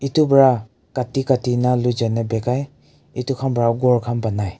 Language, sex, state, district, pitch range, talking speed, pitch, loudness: Nagamese, male, Nagaland, Kohima, 115-135 Hz, 170 wpm, 125 Hz, -19 LUFS